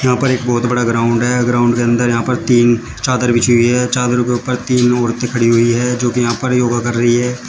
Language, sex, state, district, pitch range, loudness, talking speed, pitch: Hindi, male, Uttar Pradesh, Shamli, 120-125 Hz, -14 LUFS, 255 wpm, 120 Hz